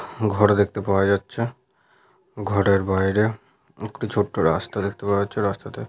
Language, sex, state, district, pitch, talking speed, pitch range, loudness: Bengali, male, Jharkhand, Sahebganj, 100 Hz, 130 wpm, 100-115 Hz, -22 LUFS